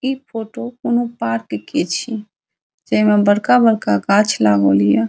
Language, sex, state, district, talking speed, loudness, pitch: Maithili, female, Bihar, Saharsa, 120 wpm, -16 LUFS, 210 Hz